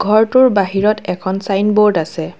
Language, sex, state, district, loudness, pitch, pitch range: Assamese, female, Assam, Kamrup Metropolitan, -14 LUFS, 200 Hz, 185-210 Hz